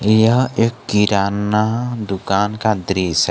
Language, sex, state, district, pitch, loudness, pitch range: Hindi, male, Jharkhand, Garhwa, 105 Hz, -17 LUFS, 100-110 Hz